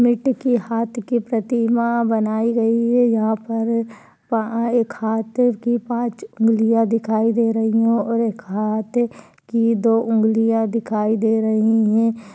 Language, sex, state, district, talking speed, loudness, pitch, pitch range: Hindi, female, Maharashtra, Nagpur, 145 wpm, -19 LUFS, 225 Hz, 220-235 Hz